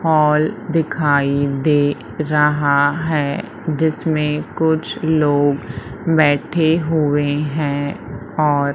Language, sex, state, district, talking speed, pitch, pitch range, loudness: Hindi, female, Madhya Pradesh, Umaria, 80 wpm, 150 Hz, 145-160 Hz, -18 LUFS